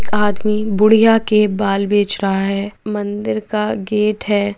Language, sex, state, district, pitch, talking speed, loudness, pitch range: Hindi, female, Bihar, Madhepura, 210 Hz, 155 wpm, -16 LUFS, 200-215 Hz